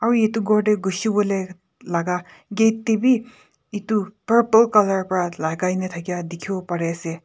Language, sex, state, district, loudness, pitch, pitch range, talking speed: Nagamese, female, Nagaland, Kohima, -21 LUFS, 195 Hz, 180-220 Hz, 150 wpm